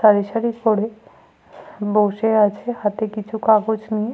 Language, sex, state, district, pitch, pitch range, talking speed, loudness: Bengali, female, Jharkhand, Sahebganj, 220 Hz, 210-225 Hz, 130 wpm, -19 LUFS